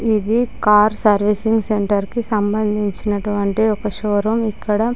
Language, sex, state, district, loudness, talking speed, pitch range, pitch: Telugu, female, Andhra Pradesh, Chittoor, -18 LUFS, 120 wpm, 205-220 Hz, 210 Hz